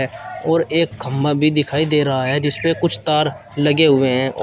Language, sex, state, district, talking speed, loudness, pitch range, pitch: Hindi, male, Uttar Pradesh, Shamli, 215 wpm, -17 LUFS, 135-155 Hz, 150 Hz